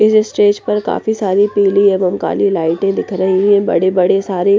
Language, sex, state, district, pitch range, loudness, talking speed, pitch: Hindi, female, Punjab, Pathankot, 190-205 Hz, -14 LUFS, 185 wpm, 200 Hz